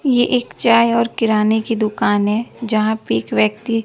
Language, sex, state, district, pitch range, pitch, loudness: Hindi, female, Bihar, West Champaran, 215-235 Hz, 225 Hz, -17 LUFS